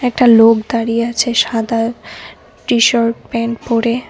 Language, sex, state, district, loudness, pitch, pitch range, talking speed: Bengali, female, West Bengal, Cooch Behar, -14 LUFS, 230 Hz, 230-235 Hz, 115 wpm